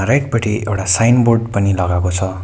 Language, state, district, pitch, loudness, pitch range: Nepali, West Bengal, Darjeeling, 105 Hz, -15 LUFS, 95-115 Hz